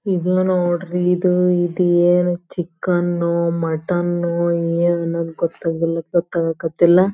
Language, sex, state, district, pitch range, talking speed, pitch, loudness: Kannada, female, Karnataka, Belgaum, 170-180 Hz, 85 wpm, 175 Hz, -18 LUFS